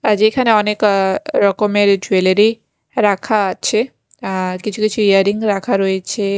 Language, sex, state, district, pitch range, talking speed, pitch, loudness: Bengali, female, Chhattisgarh, Raipur, 195-215 Hz, 140 wpm, 205 Hz, -15 LUFS